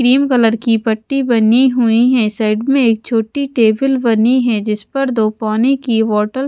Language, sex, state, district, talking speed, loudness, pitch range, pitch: Hindi, female, Odisha, Sambalpur, 195 wpm, -14 LUFS, 220-260 Hz, 230 Hz